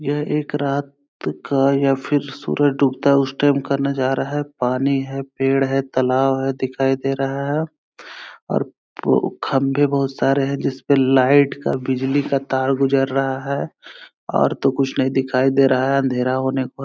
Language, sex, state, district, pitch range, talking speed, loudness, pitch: Hindi, male, Bihar, Araria, 135-140 Hz, 180 wpm, -19 LUFS, 135 Hz